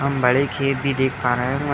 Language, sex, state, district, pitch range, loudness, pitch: Hindi, male, Uttar Pradesh, Etah, 125-140 Hz, -20 LUFS, 135 Hz